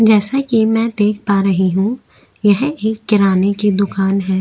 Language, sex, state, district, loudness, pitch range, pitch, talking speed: Hindi, female, Uttar Pradesh, Jyotiba Phule Nagar, -15 LUFS, 195-220 Hz, 205 Hz, 175 wpm